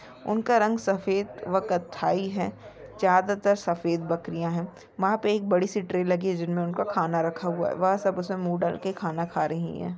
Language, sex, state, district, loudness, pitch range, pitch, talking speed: Hindi, female, Chhattisgarh, Sarguja, -27 LUFS, 170-195 Hz, 185 Hz, 205 wpm